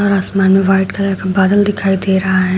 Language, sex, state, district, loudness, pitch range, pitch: Hindi, female, Uttar Pradesh, Shamli, -13 LUFS, 190-195 Hz, 195 Hz